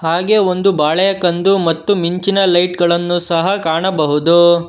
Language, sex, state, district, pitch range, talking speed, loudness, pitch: Kannada, male, Karnataka, Bangalore, 165-195 Hz, 115 wpm, -14 LUFS, 175 Hz